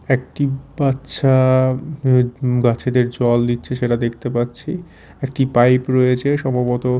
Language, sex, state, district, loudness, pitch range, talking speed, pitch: Bengali, male, Chhattisgarh, Raipur, -18 LUFS, 120-135 Hz, 130 wpm, 125 Hz